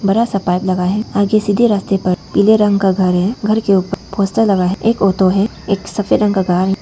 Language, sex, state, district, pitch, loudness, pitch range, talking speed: Hindi, female, Arunachal Pradesh, Papum Pare, 195 Hz, -15 LUFS, 190-210 Hz, 245 wpm